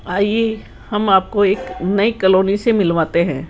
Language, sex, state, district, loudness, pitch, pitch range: Hindi, male, Rajasthan, Jaipur, -16 LUFS, 200 Hz, 180-210 Hz